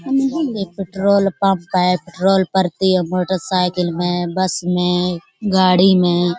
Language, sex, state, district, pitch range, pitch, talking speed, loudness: Hindi, female, Uttar Pradesh, Budaun, 180-195 Hz, 185 Hz, 120 wpm, -17 LUFS